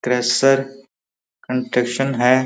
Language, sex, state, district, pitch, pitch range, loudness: Hindi, male, Uttar Pradesh, Muzaffarnagar, 125 Hz, 120-135 Hz, -18 LUFS